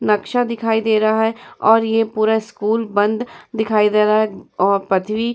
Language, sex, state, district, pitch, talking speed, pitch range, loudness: Hindi, female, Uttar Pradesh, Muzaffarnagar, 220 Hz, 190 wpm, 210-225 Hz, -17 LUFS